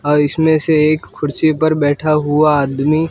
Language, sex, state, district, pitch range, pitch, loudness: Hindi, male, Gujarat, Gandhinagar, 145-155 Hz, 150 Hz, -14 LUFS